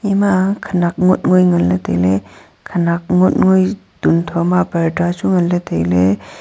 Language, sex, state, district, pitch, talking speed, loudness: Wancho, female, Arunachal Pradesh, Longding, 175 Hz, 140 wpm, -15 LUFS